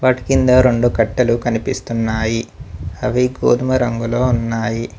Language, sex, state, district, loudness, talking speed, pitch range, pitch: Telugu, male, Telangana, Mahabubabad, -17 LUFS, 110 wpm, 115-125 Hz, 120 Hz